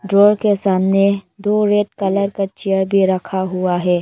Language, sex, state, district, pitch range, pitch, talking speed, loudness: Hindi, female, Arunachal Pradesh, Lower Dibang Valley, 190-205 Hz, 195 Hz, 180 wpm, -16 LUFS